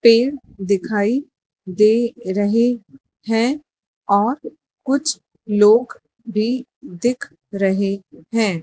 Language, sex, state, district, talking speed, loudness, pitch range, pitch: Hindi, male, Madhya Pradesh, Dhar, 85 wpm, -19 LUFS, 200-245 Hz, 225 Hz